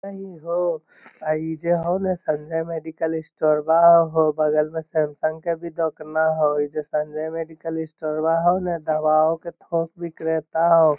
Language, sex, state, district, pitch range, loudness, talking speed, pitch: Magahi, male, Bihar, Lakhisarai, 155-170 Hz, -22 LUFS, 195 wpm, 160 Hz